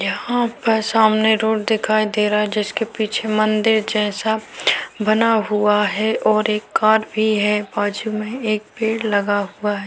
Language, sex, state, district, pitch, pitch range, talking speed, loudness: Hindi, female, Maharashtra, Chandrapur, 215 Hz, 210-220 Hz, 165 wpm, -18 LUFS